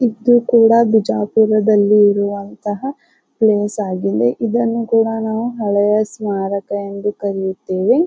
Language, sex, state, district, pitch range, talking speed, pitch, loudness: Kannada, female, Karnataka, Bijapur, 200-225 Hz, 95 wpm, 210 Hz, -16 LUFS